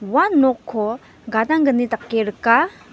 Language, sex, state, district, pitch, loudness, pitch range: Garo, female, Meghalaya, West Garo Hills, 240 Hz, -18 LUFS, 225-275 Hz